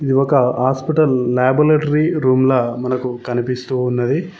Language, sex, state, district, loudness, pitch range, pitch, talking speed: Telugu, male, Telangana, Mahabubabad, -16 LUFS, 125-145 Hz, 130 Hz, 110 wpm